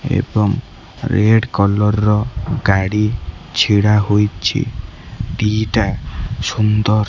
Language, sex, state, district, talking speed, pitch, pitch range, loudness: Odia, male, Odisha, Khordha, 75 wpm, 105 Hz, 100-115 Hz, -16 LUFS